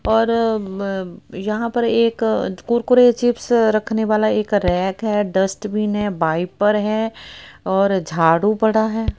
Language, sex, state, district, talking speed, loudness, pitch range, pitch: Hindi, female, Haryana, Rohtak, 135 wpm, -18 LUFS, 195-225 Hz, 215 Hz